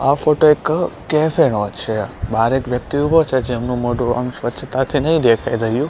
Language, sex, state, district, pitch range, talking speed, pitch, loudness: Gujarati, male, Gujarat, Gandhinagar, 120-150 Hz, 185 wpm, 130 Hz, -17 LUFS